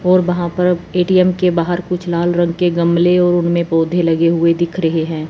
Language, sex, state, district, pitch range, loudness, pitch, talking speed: Hindi, female, Chandigarh, Chandigarh, 170-180 Hz, -15 LUFS, 175 Hz, 215 wpm